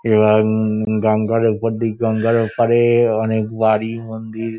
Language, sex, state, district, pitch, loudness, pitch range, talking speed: Bengali, male, West Bengal, Dakshin Dinajpur, 110 Hz, -17 LUFS, 110-115 Hz, 105 wpm